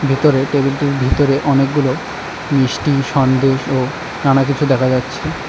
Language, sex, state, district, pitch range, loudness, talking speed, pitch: Bengali, male, West Bengal, Cooch Behar, 130-145 Hz, -16 LUFS, 120 wpm, 135 Hz